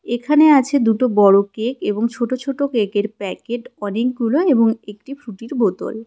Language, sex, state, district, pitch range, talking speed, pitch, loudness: Bengali, female, West Bengal, Cooch Behar, 215-260 Hz, 150 wpm, 235 Hz, -17 LUFS